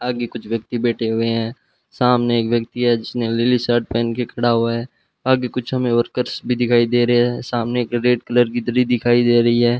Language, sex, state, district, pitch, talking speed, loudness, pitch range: Hindi, male, Rajasthan, Bikaner, 120 Hz, 220 wpm, -18 LUFS, 120-125 Hz